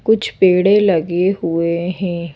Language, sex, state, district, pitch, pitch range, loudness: Hindi, female, Madhya Pradesh, Bhopal, 180 Hz, 170-195 Hz, -15 LUFS